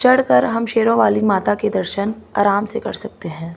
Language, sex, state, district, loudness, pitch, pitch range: Hindi, female, Delhi, New Delhi, -17 LUFS, 215 Hz, 200-225 Hz